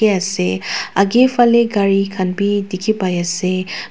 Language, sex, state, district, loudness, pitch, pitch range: Nagamese, female, Nagaland, Dimapur, -16 LUFS, 195 Hz, 185-210 Hz